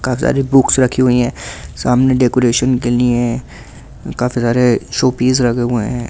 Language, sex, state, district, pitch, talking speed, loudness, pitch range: Hindi, male, Delhi, New Delhi, 125 Hz, 185 wpm, -14 LUFS, 120-130 Hz